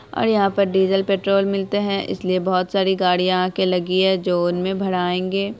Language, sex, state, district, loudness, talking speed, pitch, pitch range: Hindi, female, Bihar, Saharsa, -20 LUFS, 180 wpm, 190 Hz, 185-195 Hz